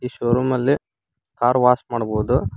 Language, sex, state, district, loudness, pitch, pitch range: Kannada, male, Karnataka, Koppal, -20 LUFS, 125 Hz, 115-125 Hz